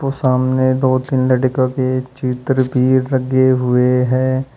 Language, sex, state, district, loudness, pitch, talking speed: Hindi, male, Uttar Pradesh, Shamli, -16 LUFS, 130 Hz, 130 wpm